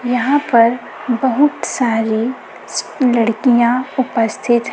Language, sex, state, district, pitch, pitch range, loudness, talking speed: Hindi, female, Chhattisgarh, Raipur, 245 Hz, 235-260 Hz, -16 LUFS, 75 wpm